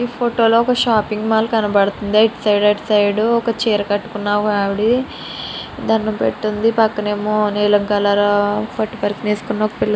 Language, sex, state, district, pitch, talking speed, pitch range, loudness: Telugu, female, Andhra Pradesh, Srikakulam, 215 Hz, 160 wpm, 205-225 Hz, -17 LUFS